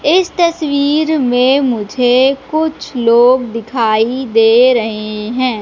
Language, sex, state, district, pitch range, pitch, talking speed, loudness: Hindi, female, Madhya Pradesh, Katni, 230-280 Hz, 250 Hz, 105 wpm, -13 LUFS